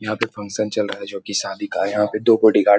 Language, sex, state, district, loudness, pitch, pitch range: Hindi, male, Bihar, Lakhisarai, -20 LUFS, 105 Hz, 105-110 Hz